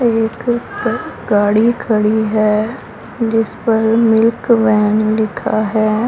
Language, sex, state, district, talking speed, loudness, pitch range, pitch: Hindi, female, Punjab, Pathankot, 100 wpm, -15 LUFS, 215-230 Hz, 220 Hz